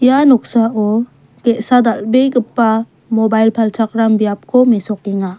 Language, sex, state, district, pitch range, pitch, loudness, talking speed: Garo, female, Meghalaya, West Garo Hills, 220-245 Hz, 225 Hz, -14 LUFS, 90 wpm